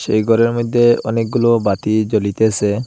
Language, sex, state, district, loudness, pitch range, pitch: Bengali, male, Assam, Hailakandi, -15 LUFS, 110-120 Hz, 110 Hz